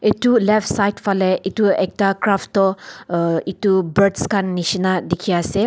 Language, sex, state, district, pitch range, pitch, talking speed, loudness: Nagamese, female, Nagaland, Dimapur, 185-205 Hz, 195 Hz, 160 wpm, -18 LUFS